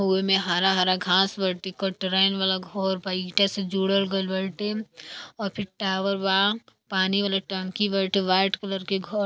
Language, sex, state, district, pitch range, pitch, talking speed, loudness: Bhojpuri, female, Uttar Pradesh, Deoria, 190-195 Hz, 195 Hz, 180 wpm, -24 LUFS